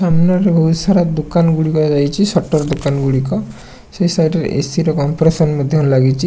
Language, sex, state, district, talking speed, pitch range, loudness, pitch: Odia, male, Odisha, Nuapada, 165 wpm, 145-170 Hz, -14 LUFS, 160 Hz